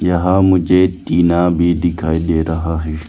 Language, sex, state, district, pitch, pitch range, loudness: Hindi, male, Arunachal Pradesh, Lower Dibang Valley, 85 Hz, 80-90 Hz, -15 LUFS